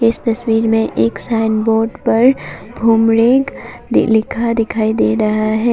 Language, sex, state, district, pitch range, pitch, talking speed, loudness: Hindi, female, Assam, Kamrup Metropolitan, 220-230 Hz, 225 Hz, 135 wpm, -14 LUFS